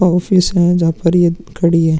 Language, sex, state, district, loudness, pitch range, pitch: Hindi, male, Bihar, Vaishali, -14 LUFS, 170-180 Hz, 175 Hz